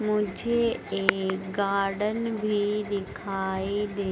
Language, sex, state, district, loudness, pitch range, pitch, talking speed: Hindi, female, Madhya Pradesh, Dhar, -27 LUFS, 190-210 Hz, 200 Hz, 85 wpm